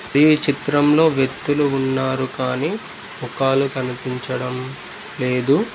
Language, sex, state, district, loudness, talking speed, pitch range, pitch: Telugu, male, Telangana, Mahabubabad, -19 LUFS, 85 wpm, 130-145 Hz, 135 Hz